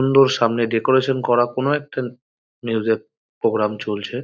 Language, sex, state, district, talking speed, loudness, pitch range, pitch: Bengali, male, West Bengal, North 24 Parganas, 140 wpm, -20 LUFS, 115-130 Hz, 120 Hz